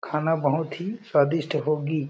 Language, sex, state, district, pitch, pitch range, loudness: Hindi, male, Chhattisgarh, Balrampur, 155 Hz, 150-160 Hz, -25 LUFS